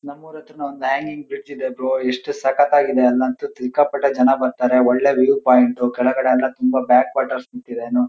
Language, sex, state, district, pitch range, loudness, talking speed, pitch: Kannada, male, Karnataka, Shimoga, 125-140 Hz, -18 LUFS, 165 wpm, 130 Hz